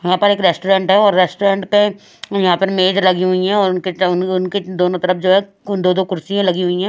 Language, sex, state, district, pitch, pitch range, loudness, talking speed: Hindi, female, Haryana, Rohtak, 185 Hz, 185-195 Hz, -15 LUFS, 250 wpm